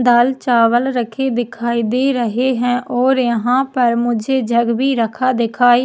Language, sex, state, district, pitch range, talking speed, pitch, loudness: Hindi, female, Chhattisgarh, Jashpur, 235-255 Hz, 155 wpm, 245 Hz, -16 LUFS